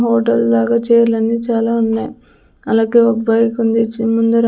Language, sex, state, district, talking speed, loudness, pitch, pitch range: Telugu, female, Andhra Pradesh, Sri Satya Sai, 145 wpm, -14 LUFS, 225 Hz, 225-230 Hz